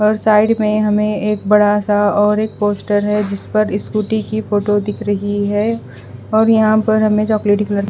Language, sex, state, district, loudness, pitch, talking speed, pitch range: Hindi, female, Bihar, West Champaran, -15 LUFS, 210 Hz, 200 wpm, 205-215 Hz